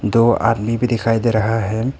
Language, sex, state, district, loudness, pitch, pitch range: Hindi, male, Arunachal Pradesh, Papum Pare, -17 LUFS, 115 Hz, 110-115 Hz